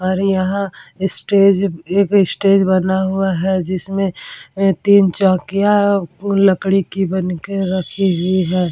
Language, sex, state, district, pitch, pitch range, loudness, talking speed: Hindi, female, Bihar, Vaishali, 190 Hz, 185-195 Hz, -16 LUFS, 130 wpm